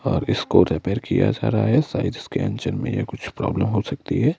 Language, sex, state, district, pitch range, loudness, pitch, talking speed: Hindi, male, Madhya Pradesh, Bhopal, 110-140 Hz, -22 LUFS, 125 Hz, 235 wpm